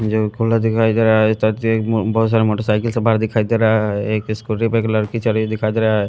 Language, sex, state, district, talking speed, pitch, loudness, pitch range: Hindi, male, Haryana, Rohtak, 255 wpm, 110 Hz, -17 LUFS, 110-115 Hz